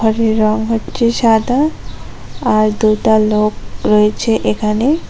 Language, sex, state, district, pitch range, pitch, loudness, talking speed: Bengali, female, West Bengal, Cooch Behar, 215-230 Hz, 220 Hz, -14 LUFS, 105 wpm